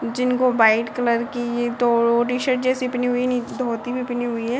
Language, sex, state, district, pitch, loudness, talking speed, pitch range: Hindi, female, Bihar, Sitamarhi, 245 Hz, -21 LUFS, 220 wpm, 235-250 Hz